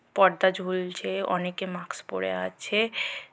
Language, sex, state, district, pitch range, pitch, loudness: Bengali, female, West Bengal, North 24 Parganas, 140-190 Hz, 185 Hz, -27 LUFS